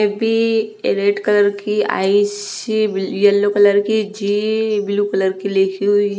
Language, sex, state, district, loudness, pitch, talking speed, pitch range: Hindi, female, Haryana, Rohtak, -17 LUFS, 205 Hz, 135 wpm, 200-210 Hz